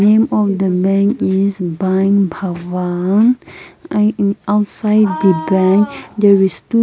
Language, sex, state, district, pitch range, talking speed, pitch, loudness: English, female, Nagaland, Kohima, 185-210 Hz, 130 wpm, 195 Hz, -15 LUFS